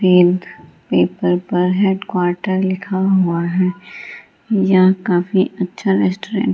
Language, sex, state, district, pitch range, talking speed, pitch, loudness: Hindi, female, Bihar, Gaya, 180-195 Hz, 90 wpm, 185 Hz, -17 LUFS